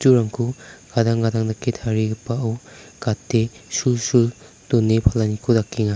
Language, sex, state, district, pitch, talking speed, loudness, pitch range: Garo, male, Meghalaya, South Garo Hills, 115 Hz, 90 wpm, -21 LUFS, 110-120 Hz